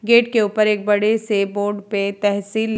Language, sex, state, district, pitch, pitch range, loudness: Hindi, female, Uttar Pradesh, Jalaun, 210 Hz, 205-220 Hz, -18 LUFS